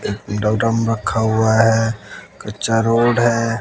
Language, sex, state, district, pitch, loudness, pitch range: Hindi, male, Haryana, Jhajjar, 115 Hz, -17 LUFS, 110-115 Hz